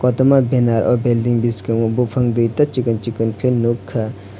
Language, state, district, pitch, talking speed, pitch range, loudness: Kokborok, Tripura, West Tripura, 120 Hz, 150 wpm, 115-125 Hz, -17 LUFS